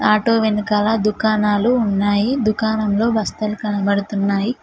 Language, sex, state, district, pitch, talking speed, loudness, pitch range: Telugu, female, Telangana, Mahabubabad, 215 Hz, 90 wpm, -18 LUFS, 205-220 Hz